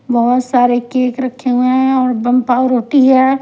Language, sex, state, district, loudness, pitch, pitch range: Hindi, female, Punjab, Pathankot, -13 LUFS, 255 Hz, 245-260 Hz